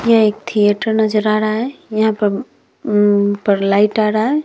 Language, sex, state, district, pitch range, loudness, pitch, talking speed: Hindi, female, Bihar, Vaishali, 205-220 Hz, -15 LUFS, 215 Hz, 215 wpm